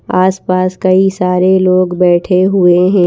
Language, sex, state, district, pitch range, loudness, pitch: Hindi, female, Madhya Pradesh, Bhopal, 180-185 Hz, -11 LUFS, 185 Hz